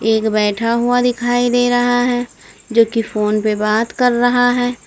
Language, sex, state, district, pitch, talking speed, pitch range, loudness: Hindi, female, Uttar Pradesh, Lalitpur, 245 Hz, 185 wpm, 220-245 Hz, -15 LUFS